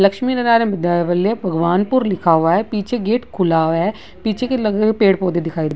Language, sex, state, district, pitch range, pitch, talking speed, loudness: Hindi, female, Bihar, Vaishali, 175-225 Hz, 200 Hz, 175 wpm, -17 LUFS